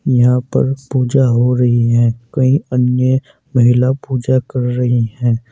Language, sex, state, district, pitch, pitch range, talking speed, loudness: Hindi, male, Uttar Pradesh, Saharanpur, 125 Hz, 120-130 Hz, 140 wpm, -14 LUFS